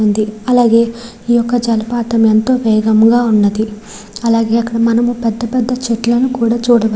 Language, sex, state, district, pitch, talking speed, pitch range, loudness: Telugu, female, Andhra Pradesh, Srikakulam, 230 Hz, 165 wpm, 220-240 Hz, -13 LUFS